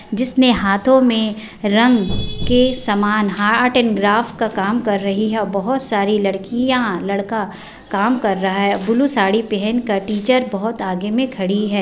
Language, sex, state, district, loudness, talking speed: Hindi, male, Bihar, Begusarai, -17 LUFS, 160 wpm